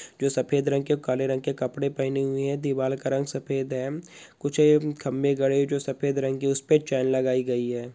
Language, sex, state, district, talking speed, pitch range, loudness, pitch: Hindi, male, Goa, North and South Goa, 210 wpm, 130-140 Hz, -25 LUFS, 135 Hz